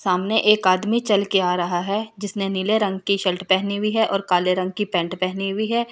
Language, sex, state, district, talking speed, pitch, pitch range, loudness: Hindi, female, Delhi, New Delhi, 245 wpm, 195 Hz, 185-210 Hz, -21 LUFS